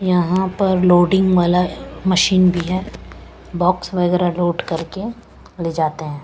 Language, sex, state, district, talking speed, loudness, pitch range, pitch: Hindi, female, Punjab, Pathankot, 145 wpm, -17 LUFS, 175-185 Hz, 180 Hz